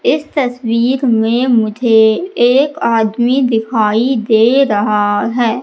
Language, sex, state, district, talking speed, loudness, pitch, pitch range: Hindi, female, Madhya Pradesh, Katni, 105 wpm, -13 LUFS, 235 Hz, 220-255 Hz